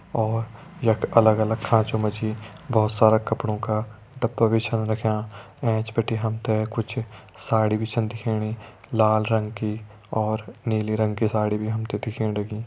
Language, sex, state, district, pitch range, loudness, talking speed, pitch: Hindi, male, Uttarakhand, Tehri Garhwal, 110-115 Hz, -24 LUFS, 175 wpm, 110 Hz